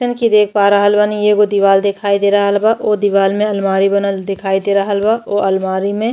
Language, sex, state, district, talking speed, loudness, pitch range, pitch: Bhojpuri, female, Uttar Pradesh, Ghazipur, 225 wpm, -14 LUFS, 195-210 Hz, 200 Hz